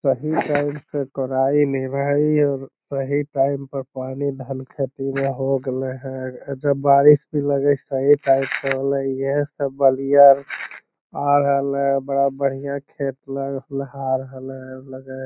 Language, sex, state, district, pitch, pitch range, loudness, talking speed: Magahi, male, Bihar, Lakhisarai, 140 Hz, 135-140 Hz, -20 LUFS, 110 wpm